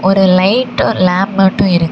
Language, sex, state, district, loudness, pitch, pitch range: Tamil, female, Tamil Nadu, Namakkal, -11 LUFS, 190 Hz, 185-195 Hz